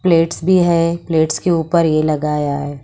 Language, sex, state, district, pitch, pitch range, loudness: Hindi, female, Haryana, Charkhi Dadri, 165 Hz, 155-170 Hz, -16 LUFS